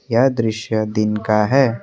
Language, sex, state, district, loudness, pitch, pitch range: Hindi, male, Assam, Kamrup Metropolitan, -18 LUFS, 110 Hz, 105-120 Hz